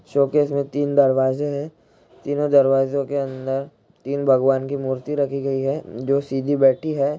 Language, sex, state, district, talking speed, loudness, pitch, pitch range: Hindi, male, Bihar, Jahanabad, 175 wpm, -21 LUFS, 140 Hz, 135-145 Hz